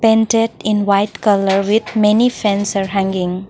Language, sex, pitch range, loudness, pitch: English, female, 195-220 Hz, -15 LUFS, 205 Hz